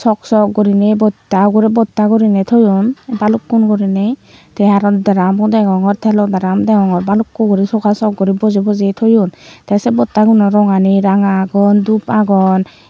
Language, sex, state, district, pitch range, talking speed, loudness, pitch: Chakma, female, Tripura, Unakoti, 195-215 Hz, 165 wpm, -12 LUFS, 205 Hz